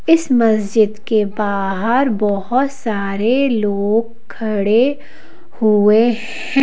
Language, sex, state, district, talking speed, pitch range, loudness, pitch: Hindi, female, Madhya Pradesh, Bhopal, 90 wpm, 210-245 Hz, -16 LUFS, 220 Hz